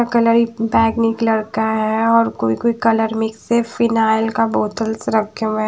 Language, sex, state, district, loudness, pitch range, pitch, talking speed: Hindi, female, Haryana, Charkhi Dadri, -17 LUFS, 220-230 Hz, 225 Hz, 170 wpm